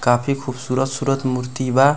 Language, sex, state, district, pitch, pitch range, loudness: Bhojpuri, male, Bihar, Muzaffarpur, 130 Hz, 125-135 Hz, -21 LUFS